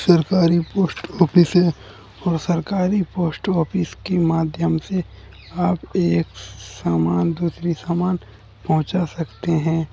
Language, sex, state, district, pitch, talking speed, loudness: Hindi, male, Uttar Pradesh, Hamirpur, 165 Hz, 115 wpm, -20 LUFS